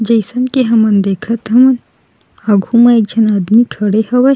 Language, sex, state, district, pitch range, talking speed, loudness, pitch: Chhattisgarhi, female, Chhattisgarh, Sukma, 215-245 Hz, 165 wpm, -11 LUFS, 230 Hz